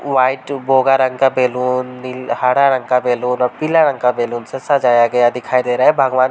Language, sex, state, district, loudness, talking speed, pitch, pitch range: Hindi, male, Uttar Pradesh, Varanasi, -15 LUFS, 230 wpm, 125 Hz, 125-135 Hz